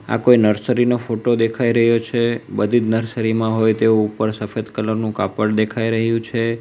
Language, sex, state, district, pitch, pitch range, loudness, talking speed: Gujarati, male, Gujarat, Valsad, 115 Hz, 110-115 Hz, -18 LUFS, 190 wpm